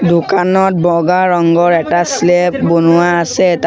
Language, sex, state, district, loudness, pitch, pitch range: Assamese, male, Assam, Sonitpur, -11 LUFS, 175 Hz, 170-180 Hz